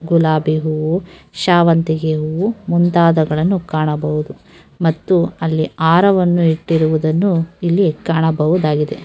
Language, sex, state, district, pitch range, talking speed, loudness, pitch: Kannada, female, Karnataka, Chamarajanagar, 155-175 Hz, 85 wpm, -15 LUFS, 165 Hz